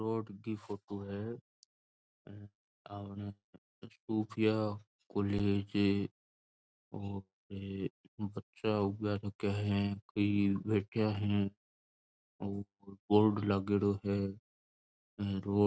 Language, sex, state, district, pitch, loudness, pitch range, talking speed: Marwari, male, Rajasthan, Nagaur, 100 Hz, -36 LUFS, 100-105 Hz, 75 wpm